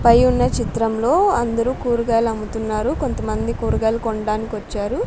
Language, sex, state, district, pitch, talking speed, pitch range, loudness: Telugu, female, Andhra Pradesh, Sri Satya Sai, 225 Hz, 120 wpm, 215-235 Hz, -20 LUFS